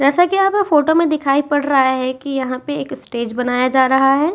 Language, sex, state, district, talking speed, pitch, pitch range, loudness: Hindi, female, Uttar Pradesh, Etah, 260 wpm, 275 Hz, 260-300 Hz, -16 LUFS